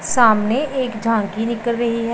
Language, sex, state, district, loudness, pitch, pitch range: Hindi, male, Punjab, Pathankot, -18 LUFS, 235 Hz, 225-240 Hz